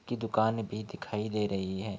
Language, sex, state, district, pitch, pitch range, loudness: Hindi, male, Bihar, Begusarai, 105 Hz, 100-110 Hz, -32 LUFS